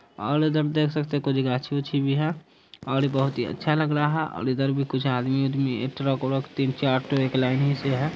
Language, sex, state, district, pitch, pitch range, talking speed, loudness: Hindi, male, Bihar, Saharsa, 135 Hz, 130-145 Hz, 230 wpm, -25 LUFS